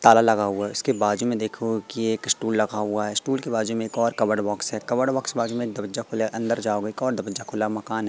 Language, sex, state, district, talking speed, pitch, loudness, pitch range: Hindi, female, Madhya Pradesh, Katni, 280 wpm, 110 Hz, -24 LUFS, 105-115 Hz